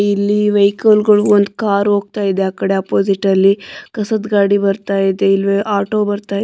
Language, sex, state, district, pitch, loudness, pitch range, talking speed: Kannada, female, Karnataka, Dharwad, 200 Hz, -14 LUFS, 195-210 Hz, 165 wpm